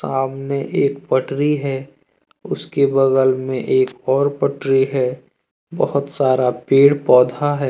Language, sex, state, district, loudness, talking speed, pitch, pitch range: Hindi, male, Jharkhand, Deoghar, -17 LUFS, 125 wpm, 135 Hz, 130-140 Hz